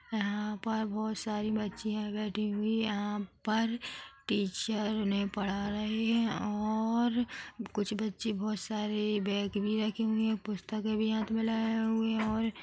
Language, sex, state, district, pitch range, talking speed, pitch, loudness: Hindi, female, Chhattisgarh, Bilaspur, 210-225 Hz, 155 wpm, 215 Hz, -33 LUFS